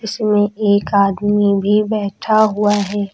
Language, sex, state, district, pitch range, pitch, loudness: Hindi, female, Uttar Pradesh, Lucknow, 200-215 Hz, 205 Hz, -15 LUFS